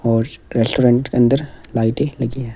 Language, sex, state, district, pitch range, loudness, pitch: Hindi, male, Himachal Pradesh, Shimla, 115-130 Hz, -18 LUFS, 120 Hz